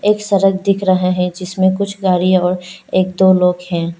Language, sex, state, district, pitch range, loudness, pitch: Hindi, female, Arunachal Pradesh, Lower Dibang Valley, 180-195 Hz, -15 LUFS, 185 Hz